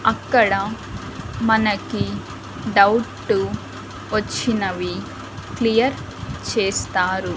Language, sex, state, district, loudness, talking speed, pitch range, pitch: Telugu, female, Andhra Pradesh, Annamaya, -21 LUFS, 50 wpm, 180-230 Hz, 210 Hz